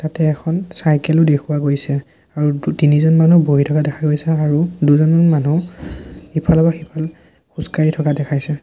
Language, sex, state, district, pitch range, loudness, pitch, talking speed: Assamese, male, Assam, Sonitpur, 150-165 Hz, -16 LUFS, 155 Hz, 165 wpm